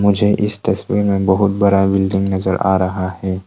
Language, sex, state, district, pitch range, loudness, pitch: Hindi, male, Arunachal Pradesh, Longding, 95-100 Hz, -15 LUFS, 95 Hz